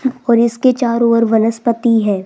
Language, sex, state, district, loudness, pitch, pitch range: Hindi, female, Rajasthan, Jaipur, -14 LUFS, 235 Hz, 225-240 Hz